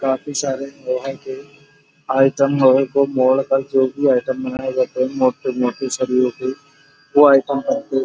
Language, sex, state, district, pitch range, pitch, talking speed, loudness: Hindi, male, Uttar Pradesh, Muzaffarnagar, 130-140 Hz, 135 Hz, 165 wpm, -18 LUFS